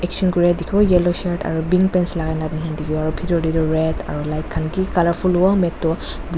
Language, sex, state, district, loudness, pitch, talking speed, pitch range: Nagamese, female, Nagaland, Dimapur, -19 LUFS, 170 Hz, 225 wpm, 160-180 Hz